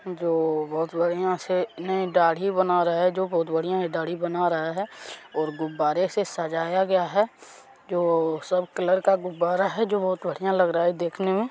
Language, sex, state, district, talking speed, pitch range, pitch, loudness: Hindi, male, Bihar, Araria, 195 wpm, 165-185 Hz, 175 Hz, -25 LUFS